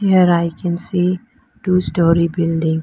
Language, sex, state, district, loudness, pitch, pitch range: English, female, Arunachal Pradesh, Lower Dibang Valley, -17 LUFS, 175 Hz, 170-180 Hz